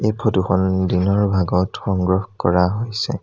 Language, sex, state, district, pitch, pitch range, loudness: Assamese, male, Assam, Sonitpur, 95 Hz, 90-105 Hz, -19 LUFS